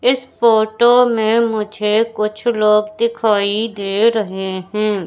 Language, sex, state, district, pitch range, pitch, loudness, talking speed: Hindi, female, Madhya Pradesh, Katni, 210-230 Hz, 215 Hz, -16 LUFS, 120 wpm